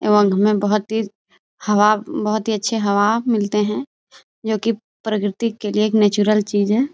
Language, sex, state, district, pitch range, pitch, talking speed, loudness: Hindi, female, Bihar, Jahanabad, 205-220 Hz, 210 Hz, 165 wpm, -19 LUFS